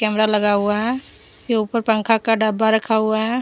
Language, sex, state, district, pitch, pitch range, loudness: Hindi, female, Jharkhand, Deoghar, 220 Hz, 215-225 Hz, -19 LUFS